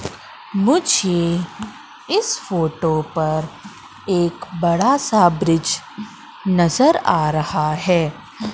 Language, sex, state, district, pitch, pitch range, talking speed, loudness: Hindi, female, Madhya Pradesh, Katni, 180 Hz, 165-225 Hz, 85 wpm, -18 LUFS